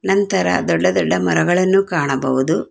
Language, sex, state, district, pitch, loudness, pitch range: Kannada, female, Karnataka, Bangalore, 155 Hz, -17 LUFS, 130-190 Hz